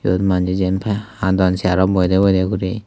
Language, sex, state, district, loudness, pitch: Chakma, male, Tripura, Dhalai, -17 LUFS, 95 Hz